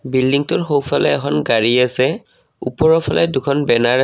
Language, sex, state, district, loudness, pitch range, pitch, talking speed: Assamese, male, Assam, Kamrup Metropolitan, -16 LUFS, 125-145 Hz, 135 Hz, 150 wpm